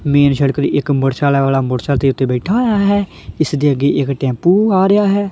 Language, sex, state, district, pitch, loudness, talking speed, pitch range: Punjabi, female, Punjab, Kapurthala, 145 Hz, -14 LUFS, 205 wpm, 135-190 Hz